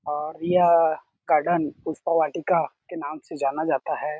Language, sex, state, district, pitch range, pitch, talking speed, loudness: Hindi, male, Chhattisgarh, Sarguja, 150-165 Hz, 155 Hz, 170 wpm, -24 LUFS